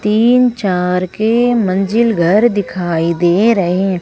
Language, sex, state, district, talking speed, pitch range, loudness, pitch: Hindi, female, Madhya Pradesh, Umaria, 135 wpm, 180-230 Hz, -13 LUFS, 195 Hz